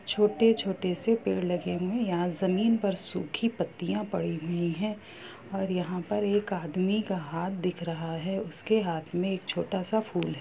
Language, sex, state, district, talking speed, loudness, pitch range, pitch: Hindi, female, Bihar, Gopalganj, 180 wpm, -30 LUFS, 175-210 Hz, 190 Hz